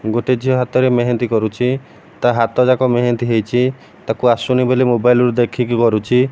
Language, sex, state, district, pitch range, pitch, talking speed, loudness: Odia, male, Odisha, Malkangiri, 120-125 Hz, 120 Hz, 170 wpm, -16 LUFS